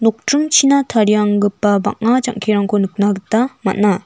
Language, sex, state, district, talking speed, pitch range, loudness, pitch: Garo, female, Meghalaya, North Garo Hills, 105 wpm, 205-245 Hz, -15 LUFS, 210 Hz